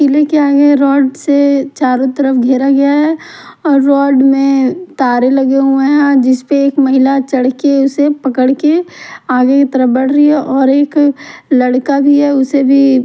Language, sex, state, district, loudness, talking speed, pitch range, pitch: Hindi, female, Haryana, Charkhi Dadri, -10 LUFS, 180 wpm, 265-285 Hz, 275 Hz